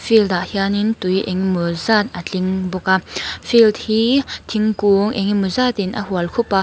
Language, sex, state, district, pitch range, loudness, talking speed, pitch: Mizo, female, Mizoram, Aizawl, 185-220 Hz, -18 LUFS, 190 wpm, 200 Hz